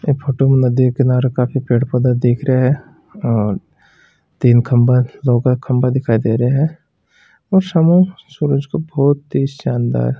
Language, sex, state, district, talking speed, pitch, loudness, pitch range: Marwari, male, Rajasthan, Nagaur, 155 wpm, 130 Hz, -15 LUFS, 120-140 Hz